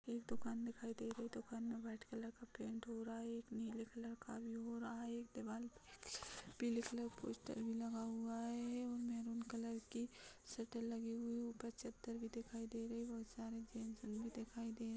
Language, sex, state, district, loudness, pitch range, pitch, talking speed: Hindi, female, Chhattisgarh, Rajnandgaon, -48 LUFS, 230-235 Hz, 230 Hz, 220 wpm